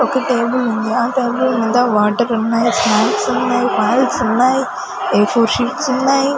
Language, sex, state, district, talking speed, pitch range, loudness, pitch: Telugu, female, Andhra Pradesh, Sri Satya Sai, 150 wpm, 230-255 Hz, -15 LUFS, 245 Hz